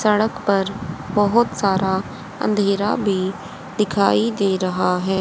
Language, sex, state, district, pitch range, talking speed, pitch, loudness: Hindi, female, Haryana, Rohtak, 190-210 Hz, 115 wpm, 200 Hz, -20 LUFS